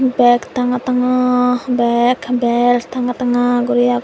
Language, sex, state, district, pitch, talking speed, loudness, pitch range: Chakma, female, Tripura, Dhalai, 245 Hz, 135 wpm, -15 LUFS, 245-250 Hz